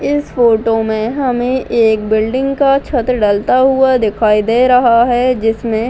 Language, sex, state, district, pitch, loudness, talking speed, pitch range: Hindi, female, Bihar, Muzaffarpur, 240 Hz, -13 LUFS, 160 wpm, 220-255 Hz